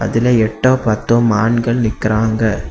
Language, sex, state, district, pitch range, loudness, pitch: Tamil, male, Tamil Nadu, Kanyakumari, 110-120 Hz, -15 LUFS, 115 Hz